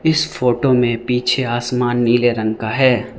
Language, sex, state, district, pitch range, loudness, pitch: Hindi, male, Arunachal Pradesh, Lower Dibang Valley, 120-130 Hz, -17 LUFS, 125 Hz